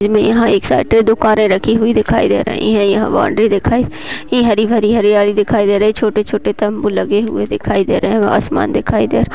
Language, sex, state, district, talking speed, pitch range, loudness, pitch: Hindi, female, Uttar Pradesh, Gorakhpur, 245 wpm, 205-220 Hz, -13 LUFS, 210 Hz